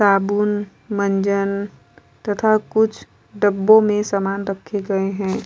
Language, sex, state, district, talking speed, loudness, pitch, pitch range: Hindi, female, Uttar Pradesh, Muzaffarnagar, 110 wpm, -19 LUFS, 200 Hz, 195-210 Hz